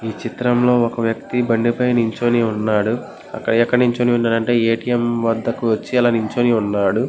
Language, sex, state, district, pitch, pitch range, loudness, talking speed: Telugu, male, Andhra Pradesh, Guntur, 115 Hz, 115-120 Hz, -18 LUFS, 125 wpm